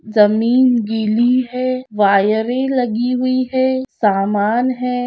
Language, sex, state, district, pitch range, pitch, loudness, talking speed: Hindi, female, Rajasthan, Churu, 215-255 Hz, 245 Hz, -16 LUFS, 105 wpm